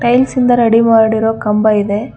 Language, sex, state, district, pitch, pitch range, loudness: Kannada, female, Karnataka, Bangalore, 225 Hz, 215-240 Hz, -12 LUFS